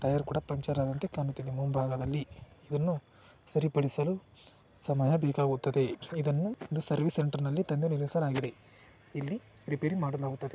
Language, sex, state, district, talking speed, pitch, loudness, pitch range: Kannada, male, Karnataka, Shimoga, 110 wpm, 145 Hz, -32 LUFS, 135-155 Hz